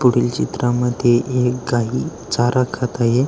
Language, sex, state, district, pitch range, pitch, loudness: Marathi, male, Maharashtra, Aurangabad, 120-125 Hz, 125 Hz, -19 LUFS